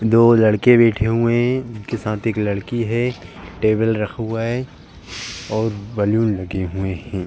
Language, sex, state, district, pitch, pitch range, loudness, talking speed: Hindi, male, Uttar Pradesh, Jalaun, 110 Hz, 100-115 Hz, -19 LUFS, 155 wpm